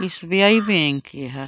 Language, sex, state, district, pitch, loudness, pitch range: Chhattisgarhi, female, Chhattisgarh, Korba, 170 Hz, -17 LUFS, 140-195 Hz